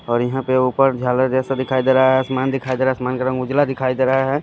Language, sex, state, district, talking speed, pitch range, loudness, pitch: Hindi, male, Delhi, New Delhi, 300 wpm, 130-135 Hz, -18 LUFS, 130 Hz